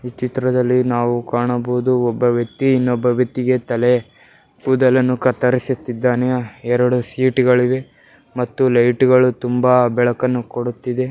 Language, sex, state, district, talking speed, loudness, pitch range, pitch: Kannada, male, Karnataka, Bellary, 110 wpm, -17 LUFS, 120-130 Hz, 125 Hz